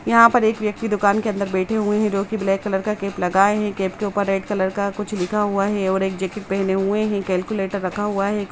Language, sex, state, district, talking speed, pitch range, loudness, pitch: Hindi, female, Bihar, Samastipur, 270 wpm, 195-210 Hz, -21 LUFS, 200 Hz